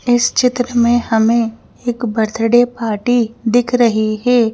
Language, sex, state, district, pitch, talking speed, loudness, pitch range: Hindi, female, Madhya Pradesh, Bhopal, 235 Hz, 130 wpm, -15 LUFS, 225-245 Hz